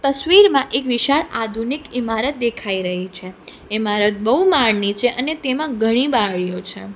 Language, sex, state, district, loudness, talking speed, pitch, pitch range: Gujarati, female, Gujarat, Valsad, -18 LUFS, 145 wpm, 230 Hz, 205-275 Hz